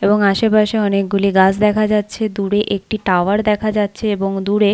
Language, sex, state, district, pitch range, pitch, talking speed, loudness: Bengali, female, West Bengal, Paschim Medinipur, 200-215 Hz, 205 Hz, 165 wpm, -16 LUFS